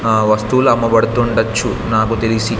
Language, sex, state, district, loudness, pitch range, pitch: Telugu, male, Andhra Pradesh, Sri Satya Sai, -15 LUFS, 110-115 Hz, 115 Hz